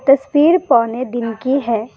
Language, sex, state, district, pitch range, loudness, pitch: Hindi, female, Assam, Kamrup Metropolitan, 230-280 Hz, -15 LUFS, 255 Hz